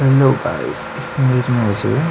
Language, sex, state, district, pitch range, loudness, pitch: Hindi, male, Chhattisgarh, Sukma, 125-135 Hz, -17 LUFS, 130 Hz